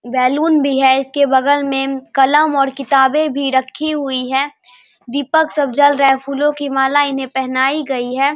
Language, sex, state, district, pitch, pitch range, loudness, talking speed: Hindi, male, Bihar, Saharsa, 275 Hz, 265-290 Hz, -15 LUFS, 180 wpm